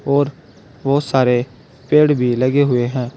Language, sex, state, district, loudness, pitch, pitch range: Hindi, male, Uttar Pradesh, Saharanpur, -16 LUFS, 135 Hz, 125-145 Hz